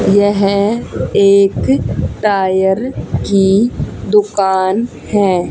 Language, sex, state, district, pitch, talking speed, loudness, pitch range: Hindi, female, Haryana, Charkhi Dadri, 200 Hz, 65 wpm, -13 LUFS, 190-205 Hz